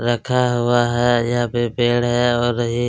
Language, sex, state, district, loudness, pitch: Hindi, male, Chhattisgarh, Kabirdham, -18 LUFS, 120 Hz